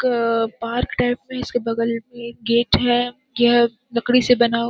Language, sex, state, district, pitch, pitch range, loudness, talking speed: Hindi, female, Bihar, Jamui, 235 Hz, 235-245 Hz, -20 LUFS, 215 wpm